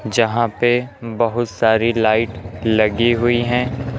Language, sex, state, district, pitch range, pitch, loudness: Hindi, male, Uttar Pradesh, Lucknow, 110-120 Hz, 115 Hz, -17 LUFS